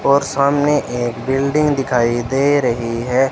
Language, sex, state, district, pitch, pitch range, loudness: Hindi, male, Rajasthan, Bikaner, 135 Hz, 120-140 Hz, -17 LUFS